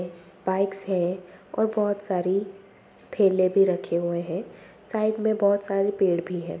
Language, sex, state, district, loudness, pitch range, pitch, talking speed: Hindi, female, Bihar, Sitamarhi, -25 LUFS, 180-200 Hz, 195 Hz, 155 wpm